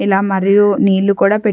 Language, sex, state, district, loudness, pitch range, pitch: Telugu, female, Andhra Pradesh, Chittoor, -13 LUFS, 195-205 Hz, 200 Hz